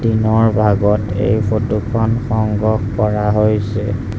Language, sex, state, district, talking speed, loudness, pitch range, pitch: Assamese, male, Assam, Sonitpur, 115 wpm, -16 LUFS, 105-110 Hz, 105 Hz